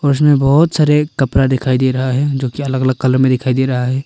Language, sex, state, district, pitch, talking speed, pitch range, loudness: Hindi, male, Arunachal Pradesh, Longding, 130 Hz, 280 wpm, 130-145 Hz, -14 LUFS